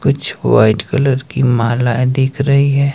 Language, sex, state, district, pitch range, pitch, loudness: Hindi, male, Himachal Pradesh, Shimla, 120-140 Hz, 135 Hz, -14 LUFS